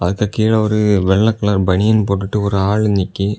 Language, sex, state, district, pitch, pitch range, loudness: Tamil, male, Tamil Nadu, Kanyakumari, 105 Hz, 95-105 Hz, -15 LUFS